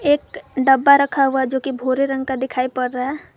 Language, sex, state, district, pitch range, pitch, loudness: Hindi, female, Jharkhand, Garhwa, 260-280 Hz, 265 Hz, -18 LUFS